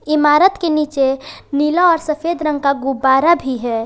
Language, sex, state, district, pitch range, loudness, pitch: Hindi, female, Jharkhand, Garhwa, 270-325 Hz, -15 LUFS, 295 Hz